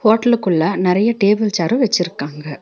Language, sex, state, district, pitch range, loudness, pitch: Tamil, female, Tamil Nadu, Nilgiris, 165-220 Hz, -16 LUFS, 200 Hz